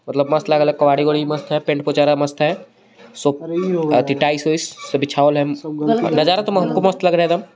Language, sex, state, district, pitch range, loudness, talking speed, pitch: Hindi, male, Jharkhand, Garhwa, 145-165 Hz, -17 LUFS, 200 wpm, 150 Hz